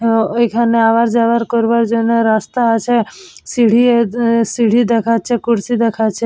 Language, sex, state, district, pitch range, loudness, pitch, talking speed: Bengali, female, West Bengal, Purulia, 225-235 Hz, -14 LUFS, 230 Hz, 115 wpm